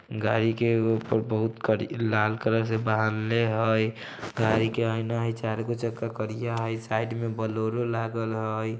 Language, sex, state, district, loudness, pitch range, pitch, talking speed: Maithili, male, Bihar, Samastipur, -27 LUFS, 110-115 Hz, 110 Hz, 165 wpm